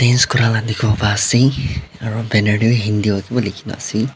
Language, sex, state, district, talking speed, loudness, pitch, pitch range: Nagamese, male, Nagaland, Dimapur, 115 wpm, -17 LUFS, 110 Hz, 105-120 Hz